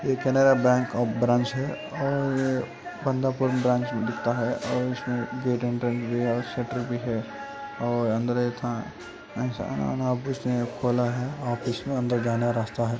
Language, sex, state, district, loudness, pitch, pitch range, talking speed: Hindi, male, Maharashtra, Aurangabad, -26 LUFS, 125 Hz, 120-130 Hz, 115 wpm